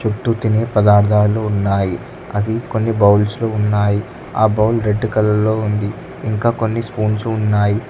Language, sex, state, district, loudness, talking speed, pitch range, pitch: Telugu, male, Telangana, Hyderabad, -17 LUFS, 145 wpm, 105-110 Hz, 105 Hz